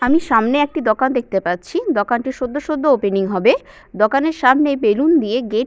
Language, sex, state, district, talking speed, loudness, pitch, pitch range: Bengali, female, West Bengal, Jalpaiguri, 200 wpm, -17 LUFS, 255 Hz, 215-300 Hz